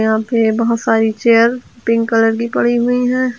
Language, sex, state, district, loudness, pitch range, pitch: Hindi, female, Uttar Pradesh, Lucknow, -14 LUFS, 225-240 Hz, 230 Hz